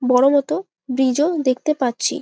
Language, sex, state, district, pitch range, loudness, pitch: Bengali, female, West Bengal, Jalpaiguri, 255-305 Hz, -19 LUFS, 265 Hz